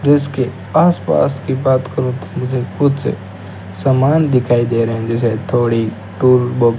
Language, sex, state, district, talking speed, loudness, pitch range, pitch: Hindi, male, Rajasthan, Bikaner, 175 wpm, -15 LUFS, 115-135 Hz, 125 Hz